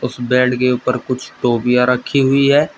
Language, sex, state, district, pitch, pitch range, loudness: Hindi, male, Uttar Pradesh, Saharanpur, 125 Hz, 125-130 Hz, -15 LUFS